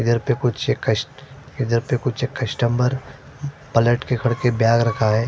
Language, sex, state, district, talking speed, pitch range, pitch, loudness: Hindi, male, Punjab, Fazilka, 160 wpm, 115-130 Hz, 125 Hz, -20 LUFS